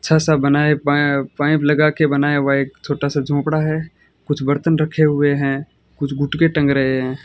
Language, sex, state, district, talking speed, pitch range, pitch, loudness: Hindi, male, Rajasthan, Bikaner, 200 wpm, 140-155 Hz, 145 Hz, -17 LUFS